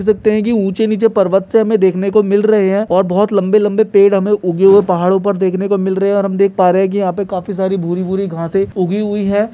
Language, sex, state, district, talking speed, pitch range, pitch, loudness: Hindi, male, Uttarakhand, Uttarkashi, 295 wpm, 190-205 Hz, 195 Hz, -13 LUFS